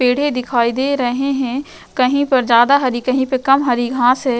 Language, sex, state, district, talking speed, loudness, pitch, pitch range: Hindi, female, Uttar Pradesh, Jyotiba Phule Nagar, 205 wpm, -16 LUFS, 260 Hz, 245-270 Hz